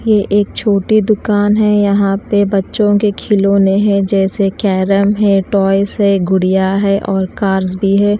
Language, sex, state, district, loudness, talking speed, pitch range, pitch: Hindi, female, Odisha, Nuapada, -13 LUFS, 160 wpm, 195-205 Hz, 200 Hz